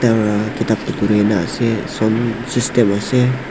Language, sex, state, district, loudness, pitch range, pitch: Nagamese, male, Nagaland, Dimapur, -17 LUFS, 105-120 Hz, 115 Hz